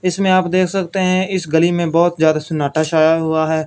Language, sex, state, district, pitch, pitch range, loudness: Hindi, male, Punjab, Fazilka, 170 Hz, 160-185 Hz, -16 LUFS